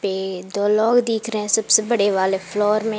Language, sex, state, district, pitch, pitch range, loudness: Hindi, female, Jharkhand, Garhwa, 210 Hz, 195-220 Hz, -19 LUFS